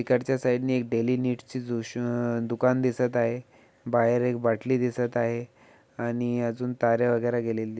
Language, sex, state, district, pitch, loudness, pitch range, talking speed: Marathi, male, Maharashtra, Aurangabad, 120 Hz, -27 LUFS, 115-125 Hz, 170 wpm